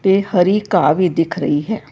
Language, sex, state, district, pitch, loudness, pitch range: Punjabi, female, Karnataka, Bangalore, 180 Hz, -16 LUFS, 165-195 Hz